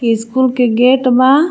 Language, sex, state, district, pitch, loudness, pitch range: Bhojpuri, female, Jharkhand, Palamu, 255 Hz, -12 LUFS, 240-260 Hz